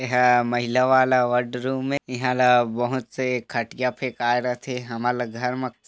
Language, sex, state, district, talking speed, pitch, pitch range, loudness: Chhattisgarhi, male, Chhattisgarh, Korba, 185 wpm, 125 Hz, 120-130 Hz, -23 LUFS